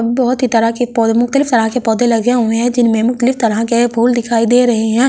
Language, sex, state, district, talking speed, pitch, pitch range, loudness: Hindi, female, Delhi, New Delhi, 245 wpm, 235 Hz, 230-245 Hz, -13 LUFS